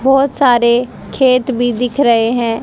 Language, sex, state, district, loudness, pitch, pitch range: Hindi, female, Haryana, Jhajjar, -13 LUFS, 245 Hz, 235-260 Hz